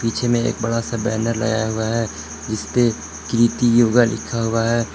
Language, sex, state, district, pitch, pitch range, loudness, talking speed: Hindi, male, Jharkhand, Palamu, 115 Hz, 110-115 Hz, -19 LUFS, 180 wpm